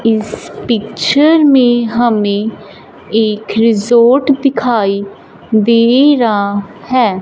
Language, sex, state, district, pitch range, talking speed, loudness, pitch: Hindi, female, Punjab, Fazilka, 215-250 Hz, 85 wpm, -12 LUFS, 230 Hz